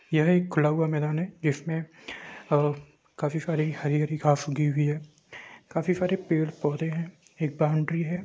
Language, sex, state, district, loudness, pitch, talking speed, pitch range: Hindi, male, Bihar, Gopalganj, -27 LUFS, 155 Hz, 160 wpm, 150-165 Hz